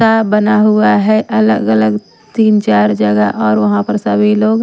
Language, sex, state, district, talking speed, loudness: Hindi, female, Maharashtra, Washim, 170 wpm, -11 LUFS